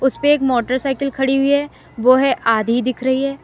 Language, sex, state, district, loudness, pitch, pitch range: Hindi, female, Uttar Pradesh, Lalitpur, -17 LUFS, 265 Hz, 250-275 Hz